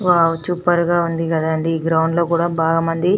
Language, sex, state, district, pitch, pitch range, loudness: Telugu, female, Telangana, Nalgonda, 165 Hz, 165-175 Hz, -18 LUFS